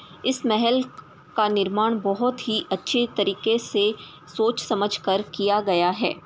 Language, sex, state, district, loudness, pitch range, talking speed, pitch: Hindi, female, Uttar Pradesh, Ghazipur, -23 LUFS, 195-230 Hz, 155 wpm, 210 Hz